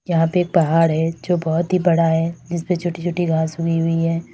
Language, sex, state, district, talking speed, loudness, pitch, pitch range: Hindi, female, Uttar Pradesh, Lalitpur, 235 wpm, -19 LUFS, 165 Hz, 165-175 Hz